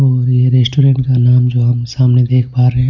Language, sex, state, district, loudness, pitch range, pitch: Hindi, male, Punjab, Pathankot, -12 LUFS, 125-130 Hz, 125 Hz